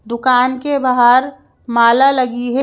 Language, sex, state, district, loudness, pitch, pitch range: Hindi, female, Madhya Pradesh, Bhopal, -13 LUFS, 255 Hz, 240-265 Hz